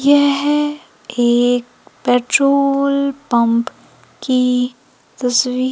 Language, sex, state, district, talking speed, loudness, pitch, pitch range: Hindi, female, Madhya Pradesh, Umaria, 75 wpm, -16 LUFS, 255 Hz, 245-280 Hz